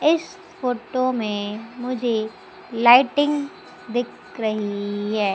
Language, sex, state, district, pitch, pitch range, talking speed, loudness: Hindi, female, Madhya Pradesh, Umaria, 240 Hz, 215-275 Hz, 90 wpm, -22 LUFS